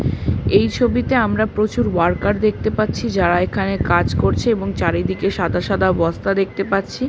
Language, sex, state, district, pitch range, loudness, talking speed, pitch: Bengali, female, West Bengal, Paschim Medinipur, 190-220 Hz, -18 LUFS, 150 wpm, 195 Hz